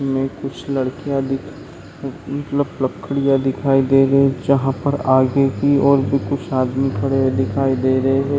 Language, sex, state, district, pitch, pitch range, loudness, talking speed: Hindi, male, Chhattisgarh, Balrampur, 135 Hz, 130-140 Hz, -18 LUFS, 180 wpm